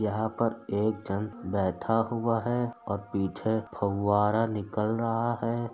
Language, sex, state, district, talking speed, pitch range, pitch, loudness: Hindi, male, Uttar Pradesh, Etah, 135 wpm, 100-115 Hz, 110 Hz, -29 LUFS